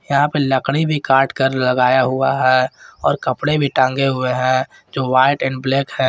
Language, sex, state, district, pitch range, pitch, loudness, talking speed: Hindi, male, Jharkhand, Garhwa, 130-140 Hz, 130 Hz, -17 LUFS, 195 wpm